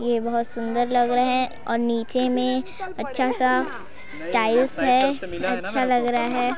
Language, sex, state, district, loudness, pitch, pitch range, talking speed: Hindi, female, Chhattisgarh, Sarguja, -23 LUFS, 245 Hz, 235-255 Hz, 165 wpm